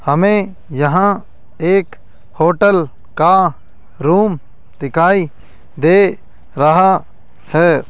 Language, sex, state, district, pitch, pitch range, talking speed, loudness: Hindi, male, Rajasthan, Jaipur, 170 Hz, 140-190 Hz, 75 wpm, -14 LUFS